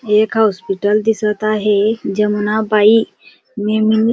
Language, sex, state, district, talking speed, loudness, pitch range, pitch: Marathi, female, Maharashtra, Dhule, 85 wpm, -15 LUFS, 210-220 Hz, 215 Hz